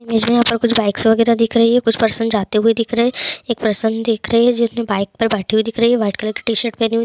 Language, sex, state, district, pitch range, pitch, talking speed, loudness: Hindi, female, Chhattisgarh, Jashpur, 220-235 Hz, 230 Hz, 290 wpm, -16 LUFS